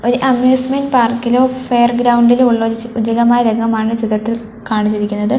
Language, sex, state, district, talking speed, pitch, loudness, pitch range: Malayalam, female, Kerala, Kollam, 120 wpm, 235 Hz, -14 LUFS, 225-245 Hz